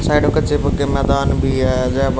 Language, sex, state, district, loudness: Hindi, male, Haryana, Jhajjar, -17 LUFS